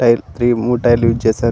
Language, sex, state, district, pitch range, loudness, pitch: Telugu, male, Andhra Pradesh, Anantapur, 115-120 Hz, -15 LUFS, 120 Hz